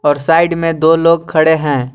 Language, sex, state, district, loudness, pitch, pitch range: Hindi, male, Jharkhand, Garhwa, -12 LUFS, 160 Hz, 145-165 Hz